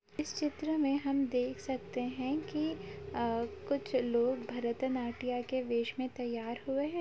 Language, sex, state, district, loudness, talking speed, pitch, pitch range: Hindi, female, Uttar Pradesh, Jalaun, -35 LUFS, 155 wpm, 255 Hz, 240-280 Hz